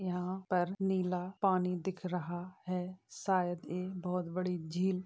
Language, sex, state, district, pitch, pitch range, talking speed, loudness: Hindi, male, Bihar, Jamui, 180 Hz, 180-185 Hz, 155 wpm, -36 LUFS